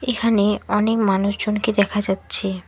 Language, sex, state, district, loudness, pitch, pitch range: Bengali, female, West Bengal, Alipurduar, -20 LUFS, 205 Hz, 200-220 Hz